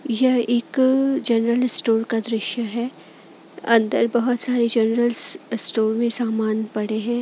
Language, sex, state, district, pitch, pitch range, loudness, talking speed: Hindi, female, Bihar, Katihar, 235 Hz, 225-245 Hz, -21 LUFS, 135 wpm